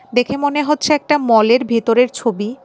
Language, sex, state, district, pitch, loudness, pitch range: Bengali, female, Tripura, West Tripura, 245 Hz, -15 LUFS, 230-290 Hz